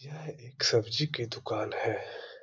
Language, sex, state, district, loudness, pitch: Hindi, male, Uttar Pradesh, Hamirpur, -31 LUFS, 150 Hz